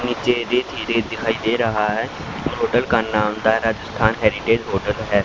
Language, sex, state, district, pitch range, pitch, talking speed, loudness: Hindi, male, Haryana, Charkhi Dadri, 105-115 Hz, 110 Hz, 170 wpm, -20 LUFS